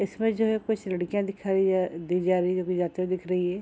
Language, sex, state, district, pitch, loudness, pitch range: Hindi, female, Bihar, Saharsa, 185 Hz, -27 LUFS, 180-200 Hz